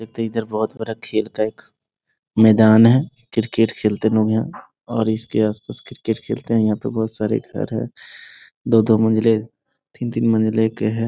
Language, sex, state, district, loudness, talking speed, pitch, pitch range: Hindi, male, Bihar, Sitamarhi, -19 LUFS, 175 wpm, 110 Hz, 110-115 Hz